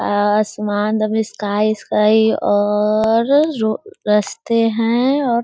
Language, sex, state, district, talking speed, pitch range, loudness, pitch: Hindi, female, Bihar, Muzaffarpur, 90 wpm, 210-230 Hz, -16 LUFS, 215 Hz